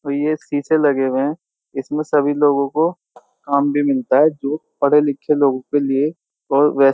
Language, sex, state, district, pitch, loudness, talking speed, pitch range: Hindi, male, Uttar Pradesh, Jyotiba Phule Nagar, 145 Hz, -18 LUFS, 190 wpm, 140-150 Hz